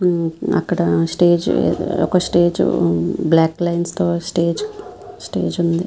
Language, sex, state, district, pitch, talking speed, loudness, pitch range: Telugu, female, Andhra Pradesh, Visakhapatnam, 175 Hz, 115 wpm, -18 LUFS, 165-180 Hz